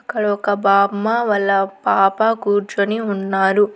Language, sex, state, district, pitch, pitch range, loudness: Telugu, female, Andhra Pradesh, Annamaya, 205 Hz, 195-210 Hz, -17 LUFS